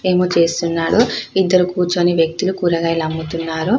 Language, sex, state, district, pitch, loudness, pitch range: Telugu, female, Telangana, Karimnagar, 175 Hz, -17 LUFS, 165-180 Hz